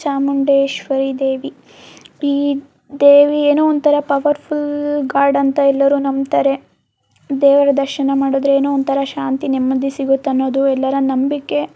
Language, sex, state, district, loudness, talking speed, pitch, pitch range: Kannada, female, Karnataka, Mysore, -15 LUFS, 115 wpm, 275 Hz, 270-285 Hz